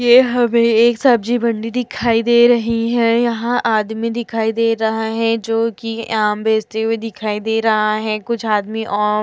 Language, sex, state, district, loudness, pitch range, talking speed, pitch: Hindi, female, Uttar Pradesh, Hamirpur, -16 LUFS, 220-235 Hz, 175 wpm, 225 Hz